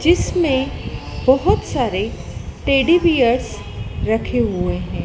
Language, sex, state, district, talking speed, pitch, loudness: Hindi, female, Madhya Pradesh, Dhar, 95 wpm, 255 Hz, -18 LUFS